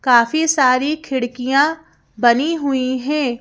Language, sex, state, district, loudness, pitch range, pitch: Hindi, female, Madhya Pradesh, Bhopal, -17 LUFS, 255-300 Hz, 265 Hz